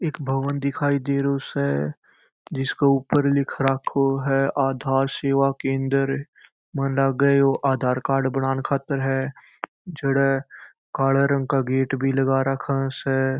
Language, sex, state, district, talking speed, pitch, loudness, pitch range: Marwari, male, Rajasthan, Churu, 145 wpm, 135 Hz, -22 LUFS, 135-140 Hz